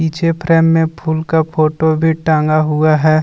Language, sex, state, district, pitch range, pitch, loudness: Hindi, male, Jharkhand, Deoghar, 155-165 Hz, 160 Hz, -14 LUFS